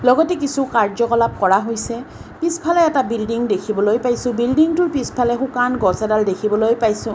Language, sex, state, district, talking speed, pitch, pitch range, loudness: Assamese, female, Assam, Kamrup Metropolitan, 140 wpm, 235 Hz, 215-265 Hz, -18 LUFS